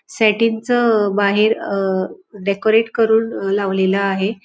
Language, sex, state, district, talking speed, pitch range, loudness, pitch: Marathi, female, Goa, North and South Goa, 135 wpm, 195-225 Hz, -17 LUFS, 205 Hz